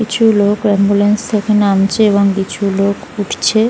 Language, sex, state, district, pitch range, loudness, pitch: Bengali, female, West Bengal, North 24 Parganas, 200-215 Hz, -13 LUFS, 205 Hz